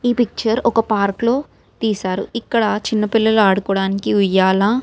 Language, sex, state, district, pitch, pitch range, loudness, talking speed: Telugu, female, Telangana, Karimnagar, 215 Hz, 195-230 Hz, -17 LUFS, 135 wpm